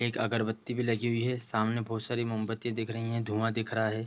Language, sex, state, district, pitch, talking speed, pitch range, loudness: Hindi, male, Bihar, East Champaran, 115 Hz, 250 wpm, 110-120 Hz, -32 LUFS